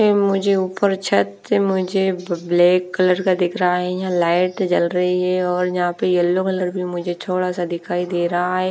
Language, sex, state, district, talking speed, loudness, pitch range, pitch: Hindi, female, Bihar, Patna, 215 wpm, -19 LUFS, 175-185 Hz, 180 Hz